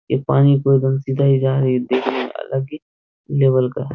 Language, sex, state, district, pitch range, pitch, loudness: Hindi, male, Bihar, Jahanabad, 130-140 Hz, 135 Hz, -17 LUFS